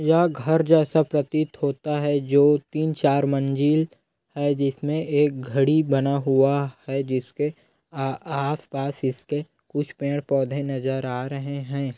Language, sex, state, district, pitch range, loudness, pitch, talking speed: Hindi, male, Chhattisgarh, Korba, 135-150 Hz, -23 LUFS, 140 Hz, 135 wpm